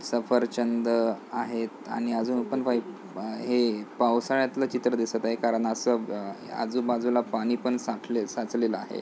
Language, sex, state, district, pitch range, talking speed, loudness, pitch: Marathi, male, Maharashtra, Pune, 115-125 Hz, 140 wpm, -28 LUFS, 120 Hz